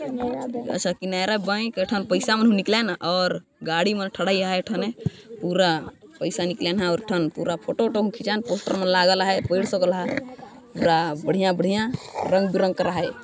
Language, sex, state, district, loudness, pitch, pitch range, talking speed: Sadri, female, Chhattisgarh, Jashpur, -23 LUFS, 190 Hz, 180-220 Hz, 165 wpm